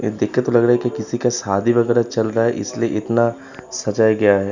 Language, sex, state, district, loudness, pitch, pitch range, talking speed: Hindi, male, Uttar Pradesh, Hamirpur, -18 LUFS, 115 Hz, 110-120 Hz, 265 wpm